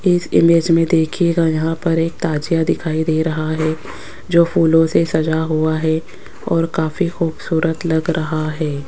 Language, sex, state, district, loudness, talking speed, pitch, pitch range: Hindi, female, Rajasthan, Jaipur, -17 LUFS, 160 wpm, 160 Hz, 160-165 Hz